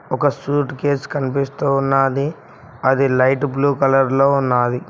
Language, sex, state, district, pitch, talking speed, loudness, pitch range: Telugu, male, Telangana, Mahabubabad, 135 Hz, 135 wpm, -18 LUFS, 130-140 Hz